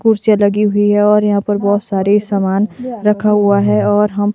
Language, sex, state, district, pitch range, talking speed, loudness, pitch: Hindi, female, Himachal Pradesh, Shimla, 205-210 Hz, 205 wpm, -13 LUFS, 205 Hz